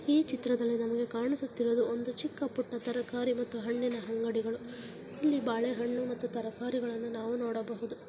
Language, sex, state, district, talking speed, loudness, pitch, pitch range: Kannada, female, Karnataka, Mysore, 150 wpm, -33 LUFS, 240 Hz, 230-250 Hz